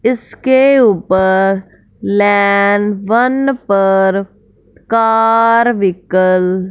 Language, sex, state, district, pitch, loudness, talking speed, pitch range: Hindi, female, Punjab, Fazilka, 200 Hz, -12 LUFS, 70 wpm, 190-230 Hz